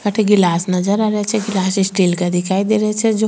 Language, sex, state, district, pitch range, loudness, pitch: Rajasthani, female, Rajasthan, Churu, 185-215 Hz, -16 LUFS, 200 Hz